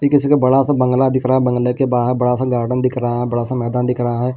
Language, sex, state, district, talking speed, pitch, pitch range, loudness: Hindi, male, Delhi, New Delhi, 315 wpm, 125 Hz, 125-130 Hz, -16 LUFS